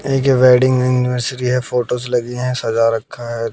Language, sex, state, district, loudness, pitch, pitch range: Hindi, male, Haryana, Jhajjar, -16 LUFS, 125 Hz, 120-125 Hz